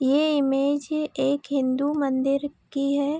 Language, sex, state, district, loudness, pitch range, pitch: Hindi, female, Bihar, Araria, -24 LUFS, 275-290 Hz, 280 Hz